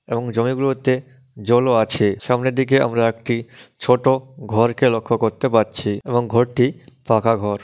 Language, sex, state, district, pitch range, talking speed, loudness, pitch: Bengali, male, West Bengal, Dakshin Dinajpur, 115-130 Hz, 135 wpm, -19 LUFS, 120 Hz